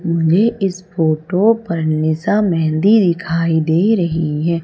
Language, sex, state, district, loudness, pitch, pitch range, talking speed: Hindi, female, Madhya Pradesh, Umaria, -16 LUFS, 170 Hz, 160-195 Hz, 130 wpm